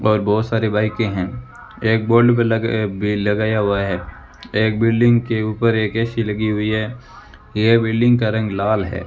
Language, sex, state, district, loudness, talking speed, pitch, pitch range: Hindi, male, Rajasthan, Bikaner, -18 LUFS, 170 wpm, 110 Hz, 105-115 Hz